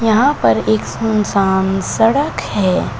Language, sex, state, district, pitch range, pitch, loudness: Hindi, female, Uttar Pradesh, Shamli, 185-225 Hz, 195 Hz, -15 LUFS